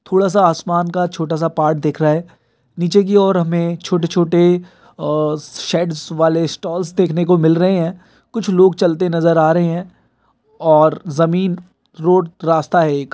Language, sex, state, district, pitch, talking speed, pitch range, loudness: Hindi, male, Bihar, Kishanganj, 170 Hz, 175 wpm, 160-180 Hz, -16 LUFS